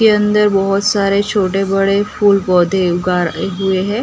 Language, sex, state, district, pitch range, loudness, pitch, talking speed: Hindi, female, Gujarat, Gandhinagar, 190-205 Hz, -14 LUFS, 195 Hz, 180 wpm